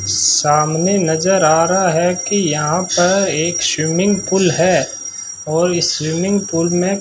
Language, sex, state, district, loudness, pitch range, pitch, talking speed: Hindi, male, Rajasthan, Bikaner, -15 LUFS, 160-190 Hz, 175 Hz, 155 wpm